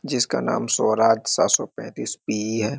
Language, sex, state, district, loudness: Hindi, male, Bihar, Muzaffarpur, -21 LUFS